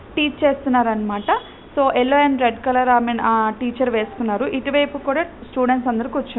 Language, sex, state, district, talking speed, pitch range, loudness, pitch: Telugu, female, Telangana, Karimnagar, 180 wpm, 235-280 Hz, -19 LUFS, 255 Hz